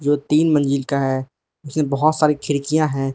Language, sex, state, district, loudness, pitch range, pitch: Hindi, male, Arunachal Pradesh, Lower Dibang Valley, -19 LUFS, 140-155 Hz, 145 Hz